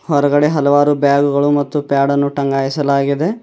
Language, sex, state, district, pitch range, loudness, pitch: Kannada, male, Karnataka, Bidar, 140-145 Hz, -14 LUFS, 145 Hz